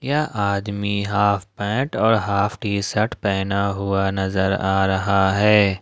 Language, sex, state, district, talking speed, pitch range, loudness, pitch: Hindi, male, Jharkhand, Ranchi, 145 wpm, 95-105 Hz, -20 LUFS, 100 Hz